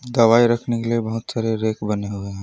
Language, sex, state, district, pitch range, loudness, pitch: Hindi, male, Jharkhand, Palamu, 105-115 Hz, -20 LUFS, 115 Hz